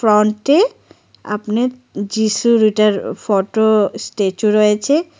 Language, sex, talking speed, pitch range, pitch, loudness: Bengali, female, 80 wpm, 210-235 Hz, 215 Hz, -16 LUFS